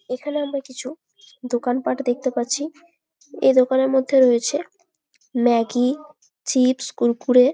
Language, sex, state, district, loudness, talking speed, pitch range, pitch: Bengali, female, West Bengal, Malda, -20 LUFS, 110 wpm, 250-295 Hz, 260 Hz